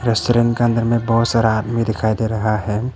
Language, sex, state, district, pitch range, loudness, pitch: Hindi, male, Arunachal Pradesh, Papum Pare, 110-115 Hz, -17 LUFS, 115 Hz